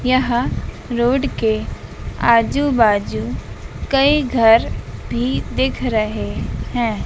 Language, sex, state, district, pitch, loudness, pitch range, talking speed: Hindi, female, Madhya Pradesh, Dhar, 230 Hz, -18 LUFS, 205-255 Hz, 95 wpm